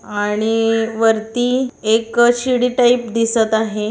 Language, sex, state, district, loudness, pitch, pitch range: Marathi, female, Maharashtra, Solapur, -16 LUFS, 225 Hz, 220-245 Hz